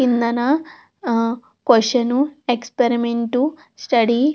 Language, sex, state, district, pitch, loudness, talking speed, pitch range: Telugu, female, Andhra Pradesh, Anantapur, 245 Hz, -19 LUFS, 85 wpm, 235-285 Hz